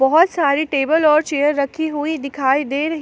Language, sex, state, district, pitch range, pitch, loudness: Hindi, female, Jharkhand, Palamu, 280-315 Hz, 295 Hz, -17 LUFS